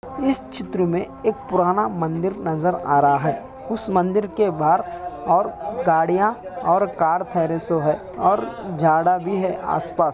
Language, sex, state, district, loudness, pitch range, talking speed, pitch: Hindi, male, Bihar, Samastipur, -21 LUFS, 165-205 Hz, 165 wpm, 180 Hz